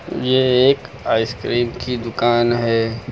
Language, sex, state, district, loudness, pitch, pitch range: Hindi, male, Uttar Pradesh, Lucknow, -18 LUFS, 120 Hz, 115-125 Hz